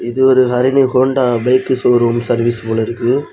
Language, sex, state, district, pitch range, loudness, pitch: Tamil, male, Tamil Nadu, Kanyakumari, 120-130 Hz, -14 LUFS, 125 Hz